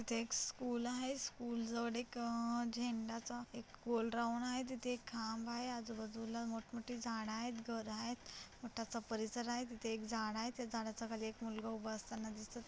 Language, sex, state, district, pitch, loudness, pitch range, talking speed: Marathi, female, Maharashtra, Chandrapur, 235 Hz, -43 LUFS, 225-240 Hz, 185 wpm